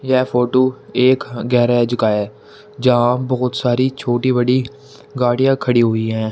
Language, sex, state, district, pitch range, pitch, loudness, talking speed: Hindi, male, Uttar Pradesh, Shamli, 120-130 Hz, 125 Hz, -16 LUFS, 135 wpm